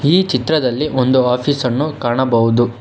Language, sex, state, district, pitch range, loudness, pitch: Kannada, male, Karnataka, Bangalore, 120-150 Hz, -15 LUFS, 130 Hz